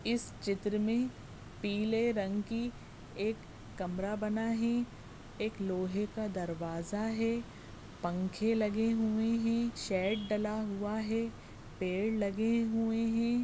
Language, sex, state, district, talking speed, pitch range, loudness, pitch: Hindi, female, Goa, North and South Goa, 120 wpm, 200-230 Hz, -34 LUFS, 215 Hz